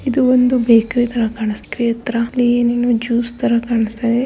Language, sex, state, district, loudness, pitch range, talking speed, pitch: Kannada, female, Karnataka, Raichur, -16 LUFS, 230-245 Hz, 170 wpm, 240 Hz